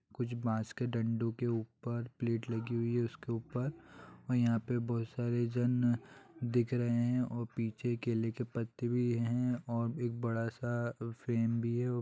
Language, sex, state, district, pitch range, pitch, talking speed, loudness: Hindi, male, Bihar, Gopalganj, 115-120 Hz, 120 Hz, 180 wpm, -35 LUFS